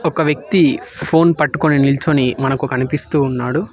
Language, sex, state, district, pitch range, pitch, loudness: Telugu, male, Telangana, Hyderabad, 135-160 Hz, 150 Hz, -16 LUFS